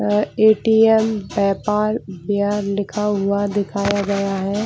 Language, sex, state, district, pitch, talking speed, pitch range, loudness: Hindi, female, Chhattisgarh, Bilaspur, 205 Hz, 105 wpm, 200-210 Hz, -18 LUFS